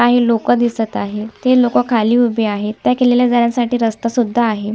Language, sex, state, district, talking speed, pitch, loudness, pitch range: Marathi, female, Maharashtra, Sindhudurg, 190 wpm, 235 Hz, -15 LUFS, 220-245 Hz